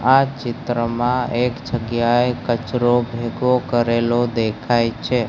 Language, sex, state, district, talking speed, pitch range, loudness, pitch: Gujarati, male, Gujarat, Gandhinagar, 100 wpm, 120-125 Hz, -19 LUFS, 120 Hz